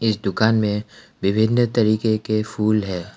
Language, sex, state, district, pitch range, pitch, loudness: Hindi, male, Assam, Kamrup Metropolitan, 105-110 Hz, 110 Hz, -20 LUFS